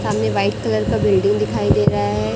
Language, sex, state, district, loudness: Hindi, female, Chhattisgarh, Raipur, -18 LUFS